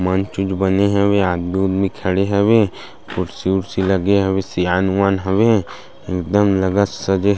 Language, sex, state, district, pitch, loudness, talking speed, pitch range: Chhattisgarhi, male, Chhattisgarh, Sarguja, 95 Hz, -17 LUFS, 145 wpm, 95-100 Hz